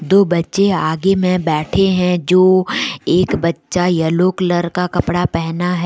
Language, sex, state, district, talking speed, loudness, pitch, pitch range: Hindi, female, Jharkhand, Deoghar, 155 wpm, -15 LUFS, 180 Hz, 170-185 Hz